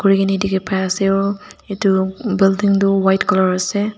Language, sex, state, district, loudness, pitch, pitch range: Nagamese, female, Nagaland, Dimapur, -17 LUFS, 195 Hz, 190-200 Hz